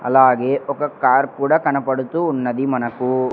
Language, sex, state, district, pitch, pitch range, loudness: Telugu, male, Andhra Pradesh, Sri Satya Sai, 130 Hz, 125-140 Hz, -18 LUFS